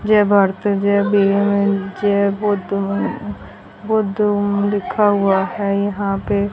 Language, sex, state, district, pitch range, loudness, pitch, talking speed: Hindi, female, Haryana, Jhajjar, 195-205 Hz, -17 LUFS, 200 Hz, 120 wpm